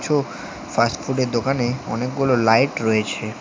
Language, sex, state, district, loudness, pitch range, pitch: Bengali, male, West Bengal, Alipurduar, -20 LUFS, 115-135 Hz, 125 Hz